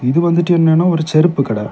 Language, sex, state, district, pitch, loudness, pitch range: Tamil, male, Tamil Nadu, Kanyakumari, 165 Hz, -13 LUFS, 140-170 Hz